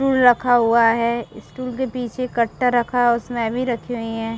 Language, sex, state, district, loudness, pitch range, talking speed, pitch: Hindi, female, Chhattisgarh, Bastar, -19 LUFS, 235-250 Hz, 205 wpm, 240 Hz